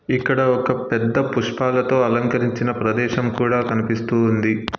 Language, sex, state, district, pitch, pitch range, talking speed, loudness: Telugu, male, Telangana, Hyderabad, 120 Hz, 115-125 Hz, 110 wpm, -19 LUFS